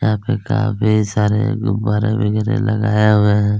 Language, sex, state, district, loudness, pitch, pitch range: Hindi, male, Chhattisgarh, Kabirdham, -16 LUFS, 105 Hz, 105-110 Hz